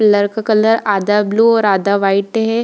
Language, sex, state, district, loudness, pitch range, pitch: Hindi, female, Bihar, Purnia, -14 LUFS, 200-225 Hz, 210 Hz